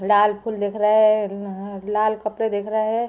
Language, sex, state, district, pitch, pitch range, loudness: Hindi, female, Jharkhand, Sahebganj, 210 Hz, 205-215 Hz, -21 LUFS